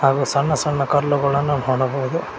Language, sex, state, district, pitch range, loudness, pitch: Kannada, male, Karnataka, Koppal, 135-145 Hz, -19 LUFS, 140 Hz